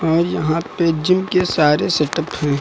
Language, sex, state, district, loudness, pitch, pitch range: Hindi, male, Uttar Pradesh, Lucknow, -17 LUFS, 165 Hz, 155-180 Hz